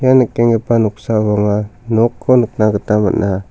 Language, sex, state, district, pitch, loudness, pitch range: Garo, male, Meghalaya, South Garo Hills, 110 Hz, -14 LUFS, 105-120 Hz